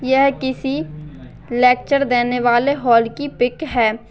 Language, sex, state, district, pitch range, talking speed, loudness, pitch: Hindi, female, Bihar, Bhagalpur, 235-275 Hz, 130 wpm, -17 LUFS, 245 Hz